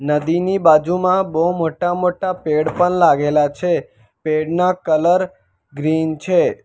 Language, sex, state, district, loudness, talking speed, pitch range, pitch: Gujarati, male, Gujarat, Valsad, -17 LUFS, 125 wpm, 155-180 Hz, 165 Hz